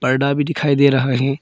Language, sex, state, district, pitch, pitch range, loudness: Hindi, female, Arunachal Pradesh, Papum Pare, 140 Hz, 135-145 Hz, -16 LUFS